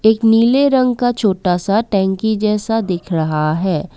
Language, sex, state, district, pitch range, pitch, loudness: Hindi, female, Assam, Kamrup Metropolitan, 185-225 Hz, 210 Hz, -15 LUFS